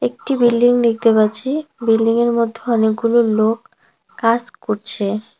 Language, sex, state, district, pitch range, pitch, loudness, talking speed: Bengali, female, West Bengal, Cooch Behar, 220-240 Hz, 230 Hz, -17 LUFS, 110 wpm